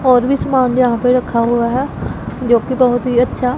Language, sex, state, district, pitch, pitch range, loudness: Hindi, female, Punjab, Pathankot, 250 Hz, 245-255 Hz, -15 LUFS